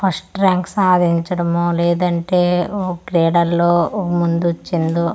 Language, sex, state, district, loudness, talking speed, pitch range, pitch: Telugu, female, Andhra Pradesh, Manyam, -17 LUFS, 95 wpm, 170-180 Hz, 175 Hz